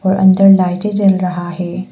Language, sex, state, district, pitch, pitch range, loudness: Hindi, female, Arunachal Pradesh, Papum Pare, 190 Hz, 180-195 Hz, -13 LUFS